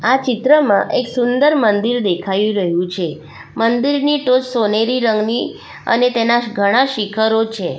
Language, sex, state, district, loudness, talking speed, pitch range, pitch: Gujarati, female, Gujarat, Valsad, -16 LUFS, 130 wpm, 200-250 Hz, 230 Hz